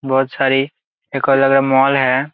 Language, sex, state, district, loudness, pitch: Hindi, male, Jharkhand, Jamtara, -15 LUFS, 135 Hz